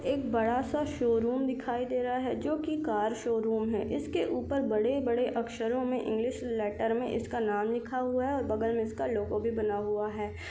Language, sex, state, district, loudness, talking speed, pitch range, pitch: Hindi, female, Chhattisgarh, Sarguja, -31 LUFS, 200 wpm, 220-255 Hz, 235 Hz